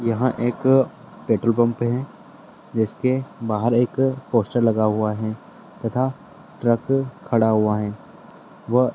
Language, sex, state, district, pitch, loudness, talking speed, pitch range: Hindi, male, Bihar, Saharsa, 120 Hz, -22 LUFS, 115 wpm, 110-130 Hz